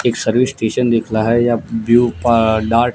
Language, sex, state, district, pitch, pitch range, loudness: Hindi, male, Gujarat, Gandhinagar, 115 Hz, 110-120 Hz, -15 LUFS